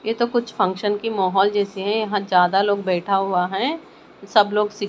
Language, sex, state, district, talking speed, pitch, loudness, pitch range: Hindi, female, Maharashtra, Mumbai Suburban, 195 wpm, 205 Hz, -20 LUFS, 195-220 Hz